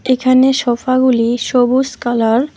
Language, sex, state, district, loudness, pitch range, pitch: Bengali, female, West Bengal, Alipurduar, -13 LUFS, 240-260 Hz, 255 Hz